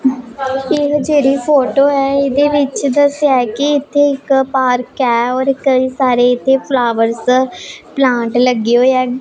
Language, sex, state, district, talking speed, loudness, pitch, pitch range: Punjabi, female, Punjab, Pathankot, 145 wpm, -13 LUFS, 265 Hz, 250-280 Hz